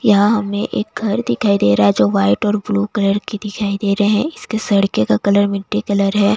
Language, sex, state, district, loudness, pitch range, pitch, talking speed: Hindi, female, Bihar, West Champaran, -16 LUFS, 200-210 Hz, 205 Hz, 235 wpm